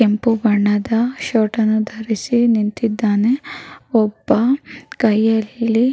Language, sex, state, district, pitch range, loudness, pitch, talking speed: Kannada, female, Karnataka, Raichur, 215-235 Hz, -17 LUFS, 225 Hz, 90 wpm